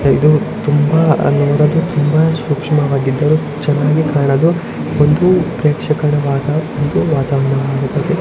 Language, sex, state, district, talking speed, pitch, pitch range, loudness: Kannada, male, Karnataka, Chamarajanagar, 90 wpm, 150 Hz, 145-155 Hz, -14 LUFS